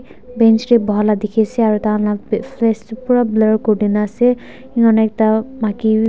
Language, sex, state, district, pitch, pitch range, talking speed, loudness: Nagamese, female, Nagaland, Dimapur, 220 Hz, 215-235 Hz, 215 wpm, -15 LUFS